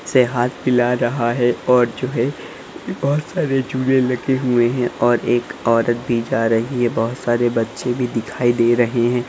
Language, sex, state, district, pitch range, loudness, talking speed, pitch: Hindi, male, Bihar, Saharsa, 120-125 Hz, -18 LUFS, 185 wpm, 120 Hz